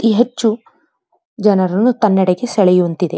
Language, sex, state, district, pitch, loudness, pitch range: Kannada, female, Karnataka, Dharwad, 210 Hz, -14 LUFS, 185-230 Hz